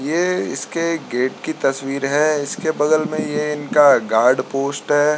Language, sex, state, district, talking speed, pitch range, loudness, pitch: Hindi, male, Uttarakhand, Tehri Garhwal, 150 wpm, 140-155 Hz, -18 LUFS, 150 Hz